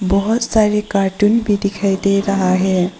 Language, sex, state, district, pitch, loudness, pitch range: Hindi, female, Arunachal Pradesh, Papum Pare, 200 Hz, -16 LUFS, 190-210 Hz